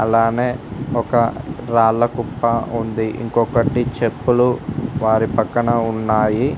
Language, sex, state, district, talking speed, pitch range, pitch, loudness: Telugu, male, Telangana, Mahabubabad, 90 wpm, 110-120 Hz, 115 Hz, -18 LUFS